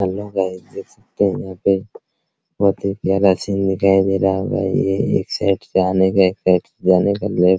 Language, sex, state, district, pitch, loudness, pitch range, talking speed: Hindi, male, Bihar, Araria, 95 Hz, -18 LUFS, 95-100 Hz, 220 wpm